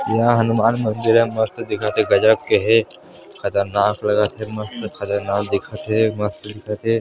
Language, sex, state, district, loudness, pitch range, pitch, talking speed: Chhattisgarhi, male, Chhattisgarh, Sarguja, -19 LUFS, 105-115 Hz, 110 Hz, 170 wpm